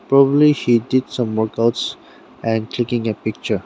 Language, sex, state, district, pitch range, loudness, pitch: English, male, Nagaland, Dimapur, 115-130 Hz, -18 LUFS, 120 Hz